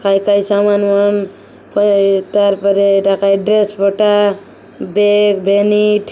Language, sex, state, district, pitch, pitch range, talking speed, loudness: Odia, female, Odisha, Malkangiri, 205 Hz, 200-205 Hz, 135 wpm, -13 LUFS